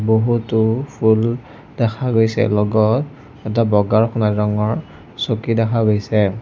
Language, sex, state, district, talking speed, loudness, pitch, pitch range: Assamese, male, Assam, Sonitpur, 120 wpm, -17 LUFS, 110 Hz, 105-120 Hz